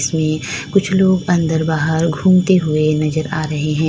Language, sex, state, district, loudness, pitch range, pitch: Hindi, female, Uttar Pradesh, Lalitpur, -16 LUFS, 155-180 Hz, 160 Hz